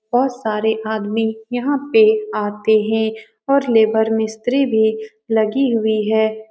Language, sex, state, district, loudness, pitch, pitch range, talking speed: Hindi, female, Bihar, Saran, -17 LUFS, 220 Hz, 220-245 Hz, 130 wpm